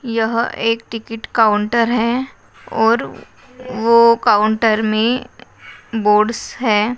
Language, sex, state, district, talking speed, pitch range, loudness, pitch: Hindi, female, Maharashtra, Nagpur, 95 wpm, 220-235 Hz, -16 LUFS, 230 Hz